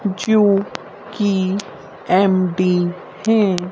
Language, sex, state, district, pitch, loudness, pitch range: Hindi, female, Haryana, Rohtak, 195 Hz, -17 LUFS, 185-205 Hz